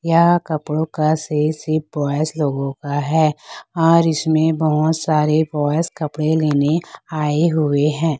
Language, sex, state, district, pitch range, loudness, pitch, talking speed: Hindi, female, Chhattisgarh, Raipur, 150-160 Hz, -18 LUFS, 155 Hz, 130 wpm